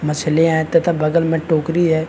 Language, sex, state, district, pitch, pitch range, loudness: Hindi, male, Chhattisgarh, Bastar, 160 Hz, 155-165 Hz, -17 LUFS